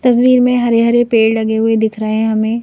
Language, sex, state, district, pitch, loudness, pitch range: Hindi, female, Madhya Pradesh, Bhopal, 225 Hz, -13 LUFS, 220-240 Hz